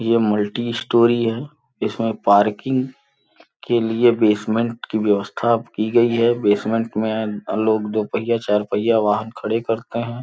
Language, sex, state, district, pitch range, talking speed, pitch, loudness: Hindi, male, Uttar Pradesh, Gorakhpur, 110-120 Hz, 145 wpm, 115 Hz, -19 LUFS